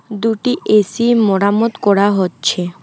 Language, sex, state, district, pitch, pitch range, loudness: Bengali, female, West Bengal, Alipurduar, 210 Hz, 195-225 Hz, -14 LUFS